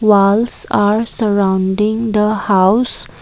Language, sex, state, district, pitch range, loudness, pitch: English, female, Assam, Kamrup Metropolitan, 200-220 Hz, -13 LUFS, 210 Hz